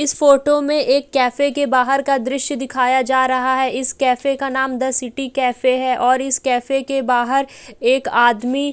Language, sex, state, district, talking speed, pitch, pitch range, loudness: Hindi, female, Uttar Pradesh, Etah, 200 wpm, 265 Hz, 255-275 Hz, -17 LUFS